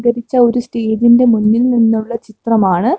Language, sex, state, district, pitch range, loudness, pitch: Malayalam, female, Kerala, Kozhikode, 225-240 Hz, -13 LUFS, 235 Hz